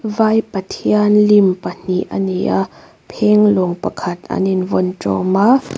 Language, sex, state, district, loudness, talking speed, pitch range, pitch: Mizo, female, Mizoram, Aizawl, -15 LUFS, 145 wpm, 185-210 Hz, 195 Hz